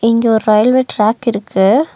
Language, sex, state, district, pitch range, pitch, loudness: Tamil, female, Tamil Nadu, Nilgiris, 215-250 Hz, 225 Hz, -13 LUFS